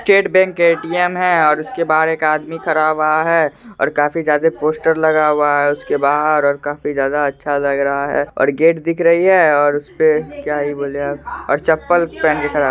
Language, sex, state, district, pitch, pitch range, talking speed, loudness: Hindi, male, Bihar, Supaul, 155 Hz, 145-165 Hz, 215 wpm, -15 LUFS